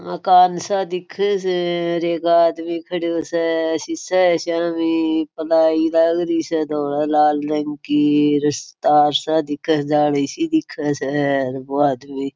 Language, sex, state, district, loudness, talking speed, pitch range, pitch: Marwari, female, Rajasthan, Churu, -19 LUFS, 140 wpm, 150-170 Hz, 160 Hz